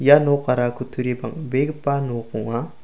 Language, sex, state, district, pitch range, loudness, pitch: Garo, male, Meghalaya, South Garo Hills, 120-145 Hz, -22 LUFS, 130 Hz